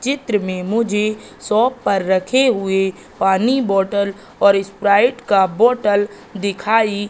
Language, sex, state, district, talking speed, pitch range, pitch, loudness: Hindi, female, Madhya Pradesh, Katni, 120 wpm, 195-230 Hz, 205 Hz, -17 LUFS